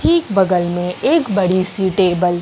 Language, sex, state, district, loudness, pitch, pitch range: Hindi, female, Madhya Pradesh, Umaria, -16 LUFS, 185 Hz, 180-200 Hz